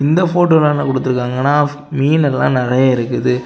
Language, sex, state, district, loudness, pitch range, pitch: Tamil, male, Tamil Nadu, Kanyakumari, -14 LUFS, 125-150 Hz, 140 Hz